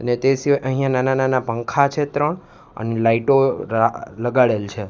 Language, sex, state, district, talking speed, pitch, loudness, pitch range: Gujarati, male, Gujarat, Gandhinagar, 170 wpm, 130 Hz, -19 LUFS, 115-135 Hz